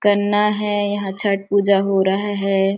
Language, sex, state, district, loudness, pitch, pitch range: Hindi, female, Chhattisgarh, Sarguja, -18 LUFS, 200 Hz, 195-205 Hz